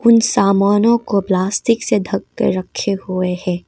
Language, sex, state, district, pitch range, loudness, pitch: Hindi, female, Arunachal Pradesh, Papum Pare, 185-225 Hz, -16 LUFS, 195 Hz